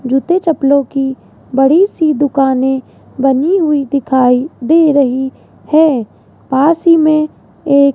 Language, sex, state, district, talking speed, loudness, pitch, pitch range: Hindi, female, Rajasthan, Jaipur, 130 wpm, -12 LUFS, 280 Hz, 265-315 Hz